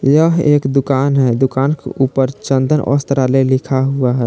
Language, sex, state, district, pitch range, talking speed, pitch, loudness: Hindi, male, Jharkhand, Palamu, 130-140 Hz, 170 wpm, 135 Hz, -14 LUFS